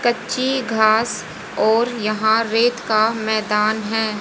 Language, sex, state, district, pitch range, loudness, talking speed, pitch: Hindi, female, Haryana, Jhajjar, 215-235 Hz, -18 LUFS, 115 wpm, 220 Hz